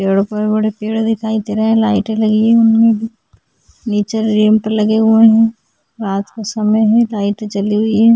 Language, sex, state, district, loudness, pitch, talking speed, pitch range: Hindi, female, Chhattisgarh, Sukma, -14 LUFS, 220 Hz, 190 wpm, 210-225 Hz